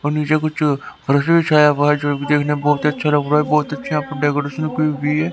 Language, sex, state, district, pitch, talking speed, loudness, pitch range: Hindi, male, Haryana, Rohtak, 150 Hz, 270 wpm, -17 LUFS, 145-150 Hz